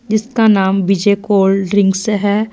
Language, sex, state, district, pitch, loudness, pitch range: Hindi, female, Punjab, Fazilka, 205 Hz, -13 LUFS, 195-215 Hz